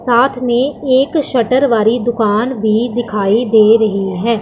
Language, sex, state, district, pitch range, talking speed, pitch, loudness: Hindi, female, Punjab, Pathankot, 220-255 Hz, 150 wpm, 235 Hz, -13 LUFS